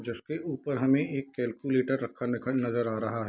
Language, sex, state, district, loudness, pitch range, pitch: Hindi, male, Bihar, Darbhanga, -30 LUFS, 120-135 Hz, 125 Hz